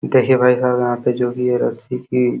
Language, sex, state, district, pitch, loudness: Hindi, male, Uttar Pradesh, Hamirpur, 125 Hz, -17 LUFS